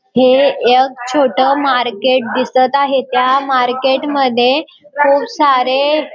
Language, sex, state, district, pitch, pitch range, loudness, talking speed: Marathi, female, Maharashtra, Dhule, 265 Hz, 255-280 Hz, -13 LUFS, 115 wpm